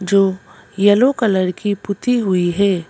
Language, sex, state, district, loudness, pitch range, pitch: Hindi, female, Madhya Pradesh, Bhopal, -16 LUFS, 185-205 Hz, 200 Hz